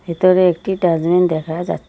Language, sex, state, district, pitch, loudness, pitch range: Bengali, female, West Bengal, Cooch Behar, 175 Hz, -16 LUFS, 165-185 Hz